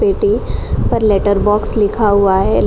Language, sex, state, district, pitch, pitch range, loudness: Hindi, female, Uttar Pradesh, Jalaun, 210 Hz, 200-225 Hz, -14 LUFS